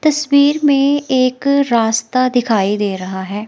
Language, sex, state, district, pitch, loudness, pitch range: Hindi, female, Himachal Pradesh, Shimla, 255 Hz, -15 LUFS, 215-280 Hz